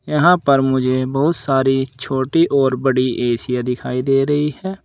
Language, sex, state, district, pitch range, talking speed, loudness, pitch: Hindi, male, Uttar Pradesh, Saharanpur, 130-145 Hz, 160 wpm, -17 LUFS, 135 Hz